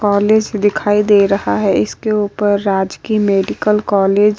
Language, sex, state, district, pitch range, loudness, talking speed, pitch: Hindi, female, Uttar Pradesh, Jalaun, 195-210 Hz, -14 LUFS, 150 wpm, 205 Hz